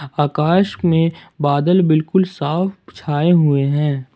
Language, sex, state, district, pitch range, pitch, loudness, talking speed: Hindi, male, Jharkhand, Ranchi, 145-175 Hz, 155 Hz, -17 LUFS, 115 wpm